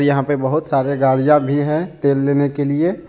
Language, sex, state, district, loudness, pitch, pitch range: Hindi, male, Jharkhand, Deoghar, -17 LUFS, 145 Hz, 140-150 Hz